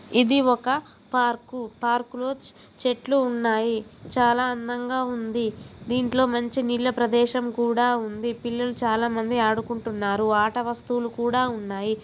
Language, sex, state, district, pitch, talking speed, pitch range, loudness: Telugu, female, Telangana, Karimnagar, 240 Hz, 120 wpm, 230-250 Hz, -24 LUFS